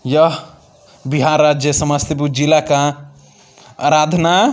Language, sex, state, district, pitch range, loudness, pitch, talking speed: Maithili, male, Bihar, Samastipur, 145-155 Hz, -14 LUFS, 150 Hz, 105 wpm